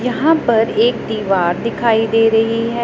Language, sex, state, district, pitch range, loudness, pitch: Hindi, female, Punjab, Pathankot, 220-235 Hz, -15 LUFS, 225 Hz